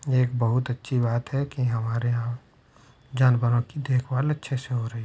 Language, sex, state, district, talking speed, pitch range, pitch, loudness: Hindi, male, Uttar Pradesh, Budaun, 225 wpm, 120-130 Hz, 125 Hz, -25 LUFS